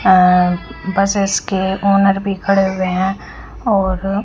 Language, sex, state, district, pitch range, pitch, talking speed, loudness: Hindi, female, Haryana, Rohtak, 190-195 Hz, 195 Hz, 125 wpm, -16 LUFS